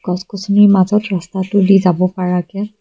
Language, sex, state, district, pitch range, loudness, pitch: Assamese, female, Assam, Kamrup Metropolitan, 185-205 Hz, -14 LUFS, 190 Hz